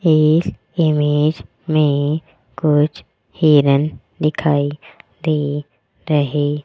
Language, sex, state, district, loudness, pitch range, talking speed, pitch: Hindi, female, Rajasthan, Jaipur, -17 LUFS, 145-155 Hz, 80 wpm, 150 Hz